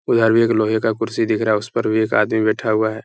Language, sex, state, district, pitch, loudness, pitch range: Hindi, male, Uttar Pradesh, Hamirpur, 110 Hz, -18 LUFS, 110-115 Hz